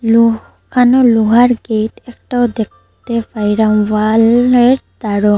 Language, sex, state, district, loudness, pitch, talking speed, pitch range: Bengali, female, Assam, Hailakandi, -12 LUFS, 225 Hz, 90 wpm, 215-245 Hz